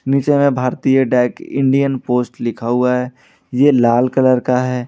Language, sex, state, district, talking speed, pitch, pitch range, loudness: Hindi, male, Jharkhand, Ranchi, 170 wpm, 125 Hz, 125-135 Hz, -15 LUFS